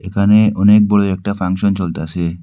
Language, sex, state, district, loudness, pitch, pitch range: Bengali, male, Assam, Hailakandi, -14 LUFS, 100 Hz, 90-105 Hz